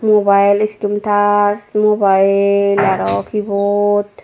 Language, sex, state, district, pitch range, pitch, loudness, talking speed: Chakma, female, Tripura, Dhalai, 200-205 Hz, 205 Hz, -14 LUFS, 85 wpm